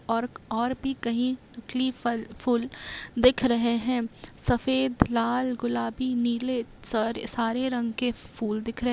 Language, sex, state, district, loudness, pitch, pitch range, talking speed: Hindi, female, Bihar, Saharsa, -28 LUFS, 240 Hz, 230-255 Hz, 140 wpm